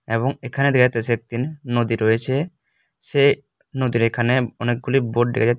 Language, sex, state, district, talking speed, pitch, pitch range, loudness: Bengali, male, Tripura, West Tripura, 140 wpm, 120 Hz, 115-135 Hz, -20 LUFS